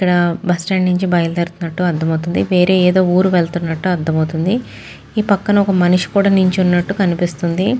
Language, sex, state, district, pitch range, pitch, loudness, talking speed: Telugu, female, Andhra Pradesh, Chittoor, 170-190 Hz, 180 Hz, -15 LUFS, 160 wpm